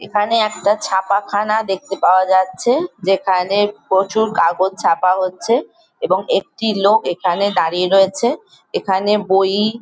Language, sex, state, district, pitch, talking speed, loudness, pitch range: Bengali, female, West Bengal, Jalpaiguri, 200 Hz, 115 wpm, -16 LUFS, 190-220 Hz